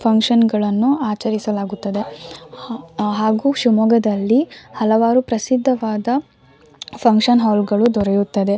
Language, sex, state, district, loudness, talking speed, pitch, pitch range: Kannada, female, Karnataka, Shimoga, -17 LUFS, 75 wpm, 220 Hz, 210-240 Hz